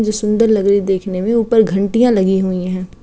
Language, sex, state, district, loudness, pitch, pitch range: Hindi, female, Uttar Pradesh, Gorakhpur, -15 LUFS, 200 Hz, 190-220 Hz